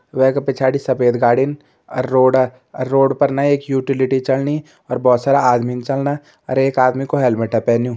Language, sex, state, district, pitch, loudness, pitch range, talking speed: Hindi, male, Uttarakhand, Tehri Garhwal, 130 Hz, -17 LUFS, 125-135 Hz, 180 wpm